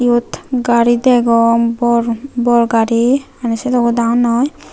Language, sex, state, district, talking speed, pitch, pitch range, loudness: Chakma, female, Tripura, Unakoti, 125 wpm, 235 Hz, 235-245 Hz, -14 LUFS